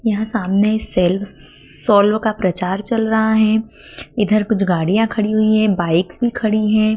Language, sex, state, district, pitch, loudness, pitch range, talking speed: Hindi, female, Madhya Pradesh, Dhar, 215 Hz, -17 LUFS, 195-220 Hz, 165 wpm